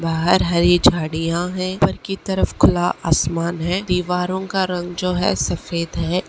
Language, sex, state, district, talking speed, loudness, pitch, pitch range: Hindi, female, Chhattisgarh, Kabirdham, 160 wpm, -19 LUFS, 175 Hz, 170-185 Hz